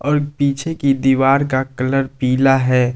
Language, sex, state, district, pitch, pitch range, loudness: Hindi, male, Jharkhand, Palamu, 135 Hz, 130-140 Hz, -16 LUFS